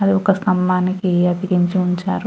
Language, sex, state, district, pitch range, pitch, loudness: Telugu, female, Andhra Pradesh, Chittoor, 180-190 Hz, 185 Hz, -17 LUFS